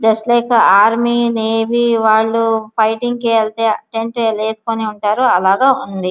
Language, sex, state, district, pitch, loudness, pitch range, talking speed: Telugu, female, Andhra Pradesh, Visakhapatnam, 225 Hz, -14 LUFS, 220-235 Hz, 140 wpm